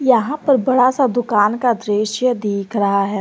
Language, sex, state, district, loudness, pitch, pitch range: Hindi, female, Jharkhand, Garhwa, -17 LUFS, 235 Hz, 205-255 Hz